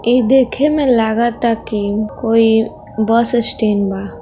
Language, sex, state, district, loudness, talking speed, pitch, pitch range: Hindi, female, Bihar, East Champaran, -14 LUFS, 130 wpm, 225 Hz, 220-240 Hz